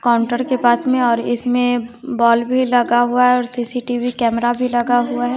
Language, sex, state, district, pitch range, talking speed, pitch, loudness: Hindi, female, Bihar, West Champaran, 240-250 Hz, 200 wpm, 245 Hz, -17 LUFS